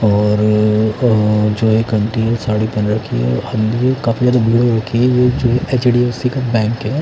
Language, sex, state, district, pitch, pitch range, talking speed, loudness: Hindi, male, Chandigarh, Chandigarh, 115 Hz, 105-125 Hz, 170 wpm, -15 LUFS